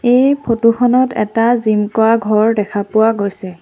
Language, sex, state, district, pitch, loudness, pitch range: Assamese, female, Assam, Sonitpur, 225 Hz, -14 LUFS, 210-240 Hz